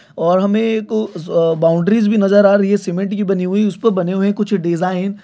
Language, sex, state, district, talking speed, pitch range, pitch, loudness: Hindi, male, Maharashtra, Nagpur, 215 wpm, 185-210 Hz, 200 Hz, -15 LUFS